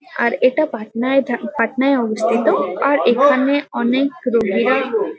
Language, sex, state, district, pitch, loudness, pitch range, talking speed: Bengali, female, West Bengal, Kolkata, 255 Hz, -17 LUFS, 230-280 Hz, 115 wpm